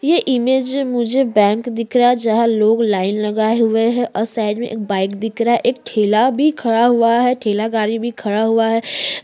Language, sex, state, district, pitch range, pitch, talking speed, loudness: Hindi, female, Uttarakhand, Tehri Garhwal, 220-245 Hz, 230 Hz, 220 wpm, -16 LUFS